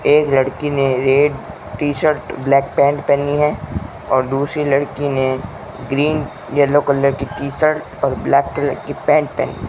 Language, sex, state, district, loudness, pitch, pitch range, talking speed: Hindi, male, Rajasthan, Bikaner, -17 LUFS, 140 Hz, 135-145 Hz, 165 wpm